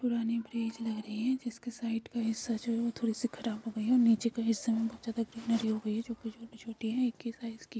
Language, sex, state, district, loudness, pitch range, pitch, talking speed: Hindi, female, Chhattisgarh, Jashpur, -34 LUFS, 225-235 Hz, 230 Hz, 260 wpm